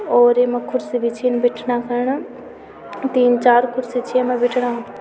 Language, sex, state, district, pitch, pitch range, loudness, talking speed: Garhwali, female, Uttarakhand, Tehri Garhwal, 245 Hz, 240-250 Hz, -18 LUFS, 145 wpm